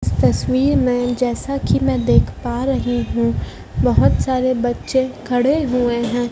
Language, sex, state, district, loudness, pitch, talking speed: Hindi, female, Madhya Pradesh, Dhar, -18 LUFS, 240 Hz, 140 wpm